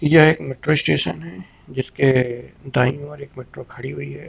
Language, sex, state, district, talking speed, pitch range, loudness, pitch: Hindi, male, Uttar Pradesh, Lucknow, 180 wpm, 130-155 Hz, -20 LUFS, 135 Hz